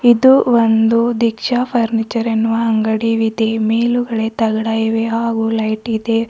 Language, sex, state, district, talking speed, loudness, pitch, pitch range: Kannada, female, Karnataka, Bidar, 115 wpm, -15 LUFS, 225 Hz, 225-230 Hz